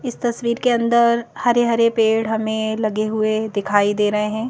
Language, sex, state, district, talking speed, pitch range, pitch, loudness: Hindi, female, Madhya Pradesh, Bhopal, 175 wpm, 215-235 Hz, 220 Hz, -19 LUFS